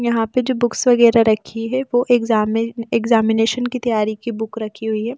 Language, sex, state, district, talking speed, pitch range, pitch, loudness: Hindi, female, Delhi, New Delhi, 210 wpm, 220-245 Hz, 230 Hz, -18 LUFS